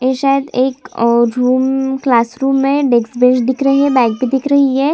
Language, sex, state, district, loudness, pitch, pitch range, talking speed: Hindi, female, Chhattisgarh, Sukma, -13 LUFS, 260 Hz, 250-275 Hz, 220 wpm